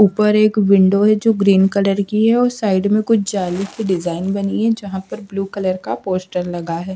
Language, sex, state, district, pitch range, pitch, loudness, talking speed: Hindi, female, Odisha, Sambalpur, 190-210 Hz, 200 Hz, -17 LUFS, 225 wpm